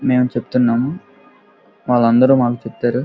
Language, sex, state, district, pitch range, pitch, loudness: Telugu, male, Andhra Pradesh, Krishna, 120-130 Hz, 125 Hz, -16 LUFS